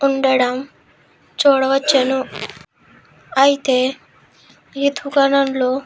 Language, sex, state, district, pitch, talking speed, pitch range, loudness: Telugu, female, Andhra Pradesh, Krishna, 270 Hz, 50 wpm, 260-280 Hz, -17 LUFS